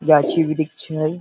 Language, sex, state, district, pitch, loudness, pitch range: Hindi, male, Bihar, Sitamarhi, 155 Hz, -18 LUFS, 155-160 Hz